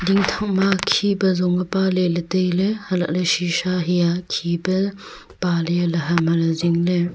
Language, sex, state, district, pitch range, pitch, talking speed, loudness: Wancho, female, Arunachal Pradesh, Longding, 170-190 Hz, 180 Hz, 185 wpm, -20 LUFS